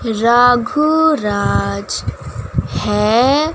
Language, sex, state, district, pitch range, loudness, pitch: Hindi, female, Bihar, West Champaran, 210-295 Hz, -15 LUFS, 240 Hz